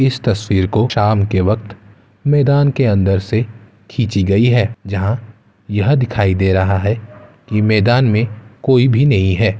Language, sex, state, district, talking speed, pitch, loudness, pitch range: Hindi, male, Uttar Pradesh, Gorakhpur, 160 wpm, 110 Hz, -15 LUFS, 100-120 Hz